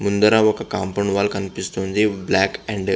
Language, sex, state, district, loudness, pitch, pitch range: Telugu, male, Andhra Pradesh, Visakhapatnam, -20 LUFS, 100 Hz, 95-105 Hz